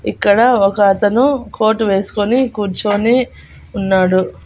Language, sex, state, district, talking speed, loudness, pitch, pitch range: Telugu, female, Andhra Pradesh, Annamaya, 95 wpm, -14 LUFS, 205 Hz, 195-240 Hz